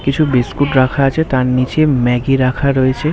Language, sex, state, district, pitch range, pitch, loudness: Bengali, male, West Bengal, Kolkata, 130-145 Hz, 135 Hz, -14 LUFS